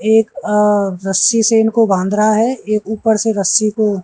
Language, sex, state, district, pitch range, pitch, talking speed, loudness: Hindi, male, Haryana, Jhajjar, 205-225 Hz, 215 Hz, 210 wpm, -14 LUFS